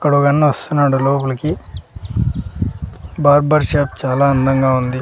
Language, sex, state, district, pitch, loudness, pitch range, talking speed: Telugu, male, Andhra Pradesh, Sri Satya Sai, 140 Hz, -16 LUFS, 135-145 Hz, 110 wpm